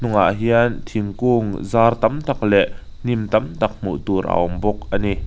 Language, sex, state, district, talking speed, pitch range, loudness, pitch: Mizo, male, Mizoram, Aizawl, 195 wpm, 95-115 Hz, -19 LUFS, 105 Hz